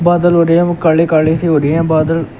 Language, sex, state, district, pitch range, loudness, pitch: Hindi, male, Uttar Pradesh, Shamli, 160-170 Hz, -12 LUFS, 165 Hz